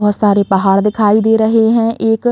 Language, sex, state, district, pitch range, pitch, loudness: Hindi, female, Uttar Pradesh, Hamirpur, 205-225 Hz, 220 Hz, -12 LUFS